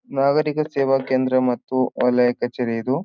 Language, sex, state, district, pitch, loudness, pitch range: Kannada, male, Karnataka, Bijapur, 130 Hz, -20 LUFS, 125-135 Hz